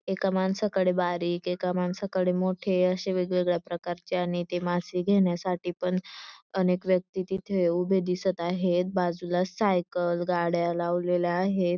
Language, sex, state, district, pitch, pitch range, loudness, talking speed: Marathi, female, Maharashtra, Dhule, 180 Hz, 175-185 Hz, -27 LUFS, 120 wpm